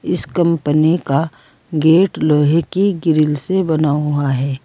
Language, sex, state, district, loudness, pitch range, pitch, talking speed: Hindi, female, Uttar Pradesh, Saharanpur, -16 LUFS, 145-170 Hz, 155 Hz, 140 wpm